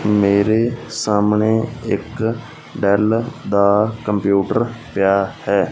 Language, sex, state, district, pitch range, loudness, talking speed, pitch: Punjabi, male, Punjab, Fazilka, 100-115 Hz, -18 LUFS, 85 wpm, 105 Hz